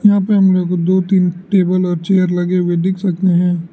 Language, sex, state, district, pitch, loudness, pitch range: Hindi, male, Arunachal Pradesh, Lower Dibang Valley, 185 Hz, -14 LUFS, 175-190 Hz